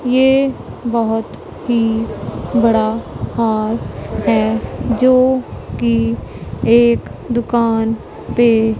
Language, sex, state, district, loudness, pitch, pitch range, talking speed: Hindi, female, Punjab, Pathankot, -16 LUFS, 230 Hz, 220-240 Hz, 75 wpm